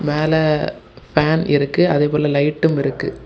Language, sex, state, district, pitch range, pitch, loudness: Tamil, male, Tamil Nadu, Kanyakumari, 145-160 Hz, 150 Hz, -17 LUFS